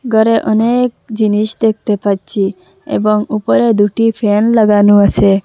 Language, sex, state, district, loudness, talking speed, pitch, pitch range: Bengali, female, Assam, Hailakandi, -12 LUFS, 120 wpm, 215 Hz, 205-225 Hz